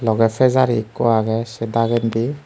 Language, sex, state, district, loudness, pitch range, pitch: Chakma, male, Tripura, Unakoti, -18 LUFS, 115-120 Hz, 115 Hz